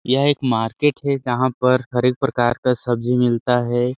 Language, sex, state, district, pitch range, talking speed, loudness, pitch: Hindi, male, Chhattisgarh, Sarguja, 120-130 Hz, 195 wpm, -19 LUFS, 125 Hz